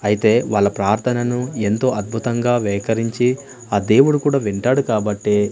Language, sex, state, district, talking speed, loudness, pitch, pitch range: Telugu, male, Andhra Pradesh, Manyam, 120 wpm, -18 LUFS, 115 Hz, 105-125 Hz